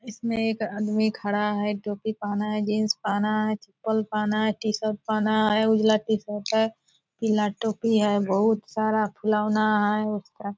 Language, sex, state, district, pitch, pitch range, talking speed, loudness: Hindi, female, Bihar, Purnia, 215 Hz, 210-220 Hz, 160 wpm, -25 LUFS